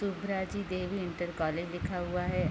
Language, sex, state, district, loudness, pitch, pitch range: Hindi, female, Uttar Pradesh, Gorakhpur, -34 LUFS, 180 Hz, 175-190 Hz